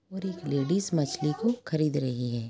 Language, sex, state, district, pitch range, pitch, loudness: Hindi, female, Jharkhand, Jamtara, 140-190 Hz, 155 Hz, -29 LUFS